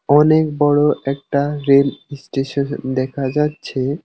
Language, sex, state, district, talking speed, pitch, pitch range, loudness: Bengali, male, West Bengal, Alipurduar, 105 wpm, 140 Hz, 135-145 Hz, -17 LUFS